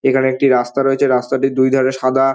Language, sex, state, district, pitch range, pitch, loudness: Bengali, male, West Bengal, Dakshin Dinajpur, 130-135 Hz, 135 Hz, -15 LUFS